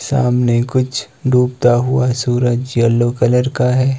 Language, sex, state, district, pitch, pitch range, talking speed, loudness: Hindi, male, Himachal Pradesh, Shimla, 125 Hz, 120-130 Hz, 135 wpm, -15 LUFS